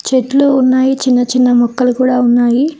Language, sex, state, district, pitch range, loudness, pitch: Telugu, female, Telangana, Hyderabad, 245-265 Hz, -11 LUFS, 255 Hz